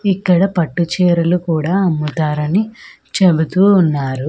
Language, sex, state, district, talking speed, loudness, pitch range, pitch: Telugu, female, Andhra Pradesh, Manyam, 100 wpm, -15 LUFS, 155-185 Hz, 170 Hz